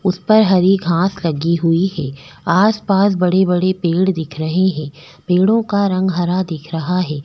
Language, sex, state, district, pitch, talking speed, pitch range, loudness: Hindi, female, Delhi, New Delhi, 180 Hz, 165 wpm, 165-190 Hz, -16 LUFS